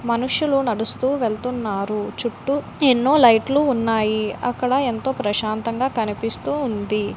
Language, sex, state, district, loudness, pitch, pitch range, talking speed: Telugu, female, Andhra Pradesh, Visakhapatnam, -20 LUFS, 235 Hz, 215-265 Hz, 90 wpm